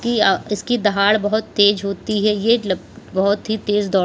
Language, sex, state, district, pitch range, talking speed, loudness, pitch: Hindi, female, Uttar Pradesh, Lalitpur, 200-215 Hz, 220 wpm, -18 LUFS, 205 Hz